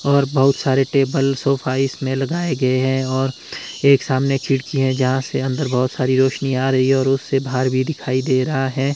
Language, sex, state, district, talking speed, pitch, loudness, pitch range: Hindi, male, Himachal Pradesh, Shimla, 205 wpm, 135 Hz, -18 LUFS, 130-135 Hz